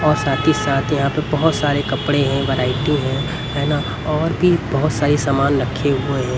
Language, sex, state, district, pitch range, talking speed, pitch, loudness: Hindi, male, Haryana, Rohtak, 135-150 Hz, 190 wpm, 140 Hz, -18 LUFS